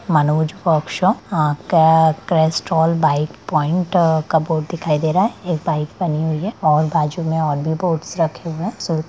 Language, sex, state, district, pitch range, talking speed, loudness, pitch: Hindi, female, Bihar, Darbhanga, 155-170 Hz, 185 wpm, -18 LUFS, 160 Hz